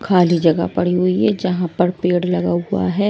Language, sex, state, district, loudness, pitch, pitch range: Hindi, male, Odisha, Malkangiri, -17 LUFS, 180 Hz, 170-185 Hz